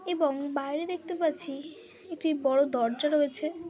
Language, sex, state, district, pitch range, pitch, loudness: Bengali, female, West Bengal, Dakshin Dinajpur, 280-335 Hz, 300 Hz, -29 LUFS